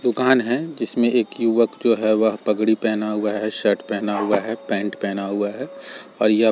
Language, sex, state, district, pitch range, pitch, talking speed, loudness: Hindi, male, Chhattisgarh, Rajnandgaon, 105-120 Hz, 110 Hz, 200 wpm, -21 LUFS